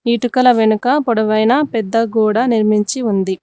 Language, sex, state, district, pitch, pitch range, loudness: Telugu, female, Telangana, Mahabubabad, 230 Hz, 215-245 Hz, -14 LUFS